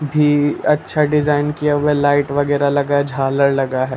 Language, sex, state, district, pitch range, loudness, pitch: Hindi, male, Bihar, Patna, 140-150 Hz, -16 LUFS, 145 Hz